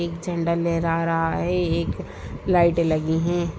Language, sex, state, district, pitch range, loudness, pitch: Hindi, female, Bihar, Sitamarhi, 165-170 Hz, -23 LUFS, 170 Hz